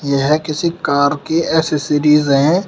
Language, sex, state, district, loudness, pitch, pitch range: Hindi, male, Uttar Pradesh, Shamli, -15 LUFS, 150 Hz, 140-160 Hz